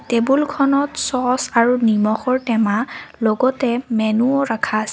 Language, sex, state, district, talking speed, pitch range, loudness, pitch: Assamese, female, Assam, Kamrup Metropolitan, 110 wpm, 225-260 Hz, -18 LUFS, 240 Hz